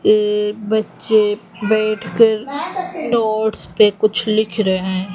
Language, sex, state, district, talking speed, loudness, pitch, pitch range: Hindi, female, Odisha, Khordha, 95 wpm, -17 LUFS, 215 Hz, 210-220 Hz